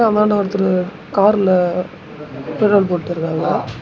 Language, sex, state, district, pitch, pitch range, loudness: Tamil, male, Tamil Nadu, Namakkal, 190 Hz, 175-205 Hz, -17 LUFS